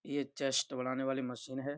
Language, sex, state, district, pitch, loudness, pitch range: Hindi, male, Uttar Pradesh, Budaun, 135 Hz, -36 LUFS, 130-140 Hz